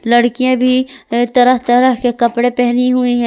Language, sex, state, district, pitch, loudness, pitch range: Hindi, female, Jharkhand, Palamu, 245 Hz, -13 LUFS, 240-255 Hz